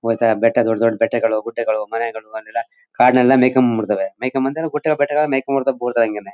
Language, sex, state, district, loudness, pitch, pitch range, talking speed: Kannada, male, Karnataka, Mysore, -18 LUFS, 115 Hz, 115-135 Hz, 170 wpm